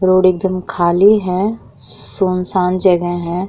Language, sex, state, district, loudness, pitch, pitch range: Hindi, female, Uttar Pradesh, Muzaffarnagar, -15 LUFS, 185 Hz, 180-190 Hz